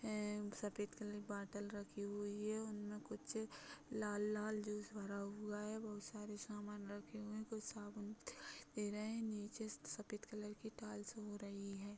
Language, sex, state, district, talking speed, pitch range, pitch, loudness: Hindi, female, Chhattisgarh, Bastar, 180 wpm, 205-215 Hz, 210 Hz, -48 LUFS